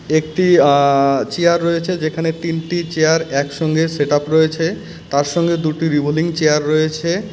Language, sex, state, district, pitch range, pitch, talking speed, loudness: Bengali, male, West Bengal, Cooch Behar, 150-170 Hz, 160 Hz, 140 wpm, -16 LUFS